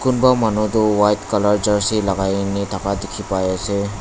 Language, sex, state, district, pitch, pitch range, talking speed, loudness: Nagamese, male, Nagaland, Dimapur, 105 Hz, 100-105 Hz, 180 wpm, -18 LUFS